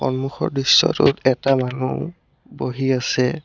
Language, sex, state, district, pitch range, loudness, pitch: Assamese, male, Assam, Sonitpur, 125-135 Hz, -19 LUFS, 130 Hz